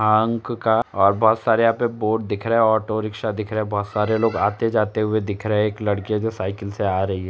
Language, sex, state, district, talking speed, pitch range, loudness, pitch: Hindi, male, Uttar Pradesh, Jalaun, 280 wpm, 105-110 Hz, -21 LUFS, 110 Hz